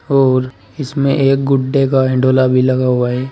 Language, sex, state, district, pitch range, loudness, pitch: Hindi, male, Uttar Pradesh, Saharanpur, 130-135 Hz, -14 LUFS, 130 Hz